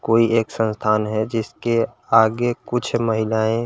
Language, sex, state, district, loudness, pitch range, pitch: Hindi, male, Uttar Pradesh, Gorakhpur, -20 LUFS, 110-115 Hz, 115 Hz